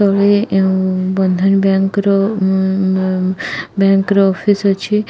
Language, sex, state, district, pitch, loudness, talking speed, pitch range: Odia, female, Odisha, Khordha, 195 Hz, -14 LUFS, 95 wpm, 190-200 Hz